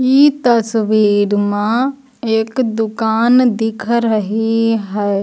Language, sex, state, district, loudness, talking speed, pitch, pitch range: Hindi, female, Uttar Pradesh, Lucknow, -15 LUFS, 90 wpm, 225 Hz, 215-240 Hz